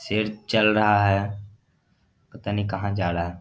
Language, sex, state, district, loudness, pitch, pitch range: Hindi, male, Bihar, Darbhanga, -23 LUFS, 100 Hz, 100-105 Hz